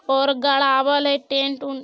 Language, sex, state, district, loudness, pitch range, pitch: Magahi, female, Bihar, Jamui, -19 LUFS, 270-280 Hz, 275 Hz